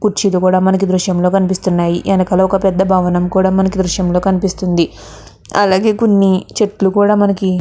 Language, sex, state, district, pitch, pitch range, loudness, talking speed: Telugu, female, Andhra Pradesh, Guntur, 190 Hz, 185-195 Hz, -13 LUFS, 165 wpm